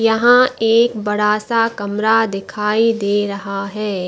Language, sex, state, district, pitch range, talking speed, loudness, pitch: Hindi, female, Chhattisgarh, Bastar, 205-225 Hz, 130 wpm, -16 LUFS, 210 Hz